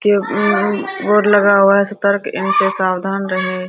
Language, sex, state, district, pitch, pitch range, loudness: Hindi, female, Bihar, Araria, 200 Hz, 190-205 Hz, -15 LUFS